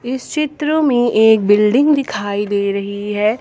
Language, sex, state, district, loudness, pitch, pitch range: Hindi, female, Jharkhand, Ranchi, -15 LUFS, 220 Hz, 205-275 Hz